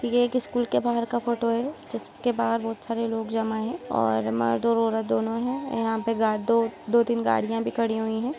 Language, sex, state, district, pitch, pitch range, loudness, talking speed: Hindi, female, Bihar, Sitamarhi, 230 Hz, 220-235 Hz, -26 LUFS, 220 wpm